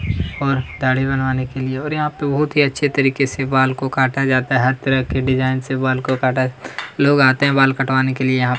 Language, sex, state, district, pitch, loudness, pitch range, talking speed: Hindi, male, Chhattisgarh, Kabirdham, 130 Hz, -17 LUFS, 130-135 Hz, 250 wpm